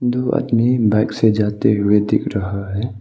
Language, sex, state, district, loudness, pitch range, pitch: Hindi, male, Arunachal Pradesh, Papum Pare, -17 LUFS, 105-125 Hz, 105 Hz